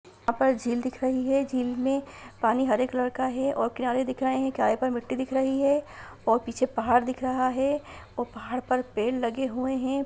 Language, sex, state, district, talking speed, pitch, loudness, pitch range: Hindi, female, Bihar, Sitamarhi, 215 wpm, 255 Hz, -27 LUFS, 245-265 Hz